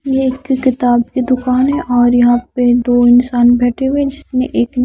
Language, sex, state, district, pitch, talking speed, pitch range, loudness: Hindi, female, Himachal Pradesh, Shimla, 250 Hz, 210 wpm, 245-265 Hz, -13 LUFS